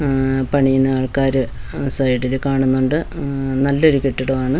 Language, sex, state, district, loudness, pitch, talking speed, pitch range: Malayalam, female, Kerala, Wayanad, -18 LUFS, 135 Hz, 105 wpm, 130-140 Hz